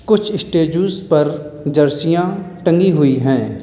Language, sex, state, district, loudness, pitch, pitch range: Hindi, male, Uttar Pradesh, Lalitpur, -15 LUFS, 170 Hz, 150-185 Hz